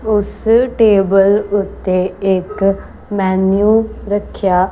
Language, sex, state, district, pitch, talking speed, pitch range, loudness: Punjabi, female, Punjab, Kapurthala, 200 Hz, 75 wpm, 190-210 Hz, -14 LUFS